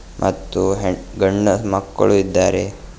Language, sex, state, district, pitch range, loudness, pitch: Kannada, male, Karnataka, Bidar, 95-100 Hz, -18 LUFS, 95 Hz